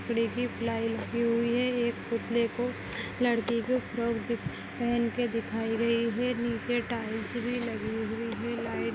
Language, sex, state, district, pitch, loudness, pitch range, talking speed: Kumaoni, female, Uttarakhand, Tehri Garhwal, 235 Hz, -31 LUFS, 230-240 Hz, 160 wpm